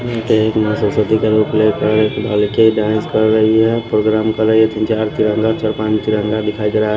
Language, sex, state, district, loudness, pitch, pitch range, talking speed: Hindi, male, Maharashtra, Washim, -15 LUFS, 110 Hz, 105-110 Hz, 230 wpm